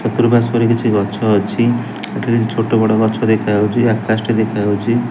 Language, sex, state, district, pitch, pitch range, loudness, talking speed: Odia, male, Odisha, Nuapada, 110 Hz, 110-115 Hz, -15 LUFS, 140 wpm